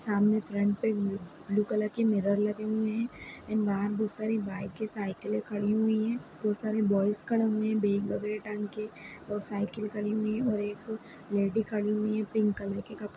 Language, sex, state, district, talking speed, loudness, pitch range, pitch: Hindi, male, Bihar, Gaya, 210 wpm, -31 LUFS, 205-215 Hz, 210 Hz